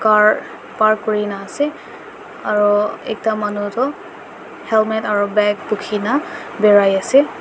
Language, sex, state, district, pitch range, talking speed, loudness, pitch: Nagamese, male, Nagaland, Dimapur, 205-225 Hz, 130 wpm, -17 LUFS, 215 Hz